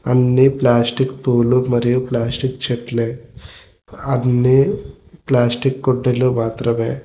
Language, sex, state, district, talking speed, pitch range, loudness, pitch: Telugu, male, Telangana, Hyderabad, 85 wpm, 120-130 Hz, -16 LUFS, 125 Hz